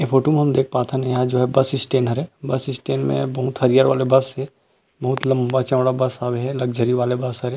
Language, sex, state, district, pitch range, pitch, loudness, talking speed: Chhattisgarhi, male, Chhattisgarh, Rajnandgaon, 125-135 Hz, 130 Hz, -19 LUFS, 230 wpm